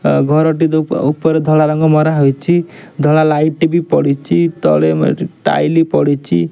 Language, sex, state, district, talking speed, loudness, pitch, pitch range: Odia, male, Odisha, Nuapada, 185 wpm, -13 LUFS, 155 Hz, 140-160 Hz